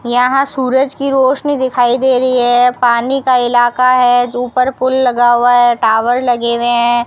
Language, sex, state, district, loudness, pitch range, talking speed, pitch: Hindi, female, Rajasthan, Bikaner, -12 LUFS, 240-260 Hz, 185 wpm, 245 Hz